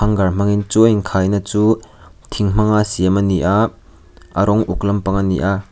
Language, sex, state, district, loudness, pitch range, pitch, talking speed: Mizo, male, Mizoram, Aizawl, -16 LUFS, 95-105 Hz, 100 Hz, 210 wpm